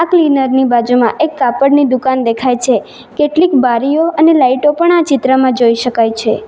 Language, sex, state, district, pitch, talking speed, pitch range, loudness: Gujarati, female, Gujarat, Valsad, 265 Hz, 165 wpm, 245-300 Hz, -11 LUFS